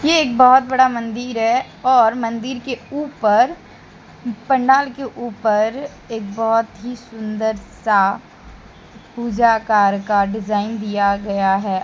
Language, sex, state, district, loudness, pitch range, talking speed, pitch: Hindi, female, Jharkhand, Deoghar, -18 LUFS, 210-255 Hz, 125 wpm, 230 Hz